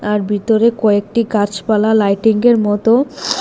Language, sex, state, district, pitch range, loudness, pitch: Bengali, female, Tripura, West Tripura, 205-230 Hz, -14 LUFS, 215 Hz